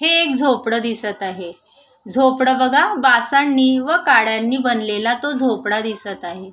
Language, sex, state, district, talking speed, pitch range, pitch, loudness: Marathi, female, Maharashtra, Sindhudurg, 140 wpm, 210-265 Hz, 240 Hz, -16 LUFS